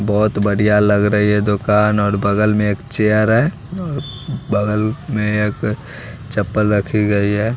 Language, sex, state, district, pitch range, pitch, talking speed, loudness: Hindi, male, Bihar, West Champaran, 105-115 Hz, 105 Hz, 150 wpm, -16 LUFS